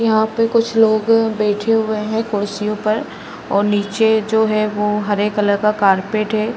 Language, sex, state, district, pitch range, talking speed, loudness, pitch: Hindi, female, Uttar Pradesh, Varanasi, 210-220 Hz, 165 wpm, -17 LUFS, 215 Hz